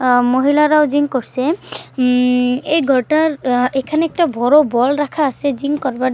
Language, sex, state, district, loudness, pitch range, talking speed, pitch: Bengali, female, West Bengal, Kolkata, -15 LUFS, 250-300 Hz, 155 wpm, 275 Hz